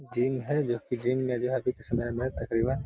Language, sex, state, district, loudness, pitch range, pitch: Hindi, male, Bihar, Gaya, -29 LUFS, 120-130 Hz, 125 Hz